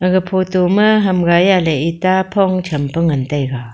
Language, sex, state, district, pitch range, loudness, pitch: Wancho, female, Arunachal Pradesh, Longding, 160-185 Hz, -14 LUFS, 180 Hz